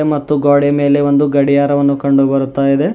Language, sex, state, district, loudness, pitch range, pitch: Kannada, male, Karnataka, Bidar, -13 LUFS, 140-145 Hz, 140 Hz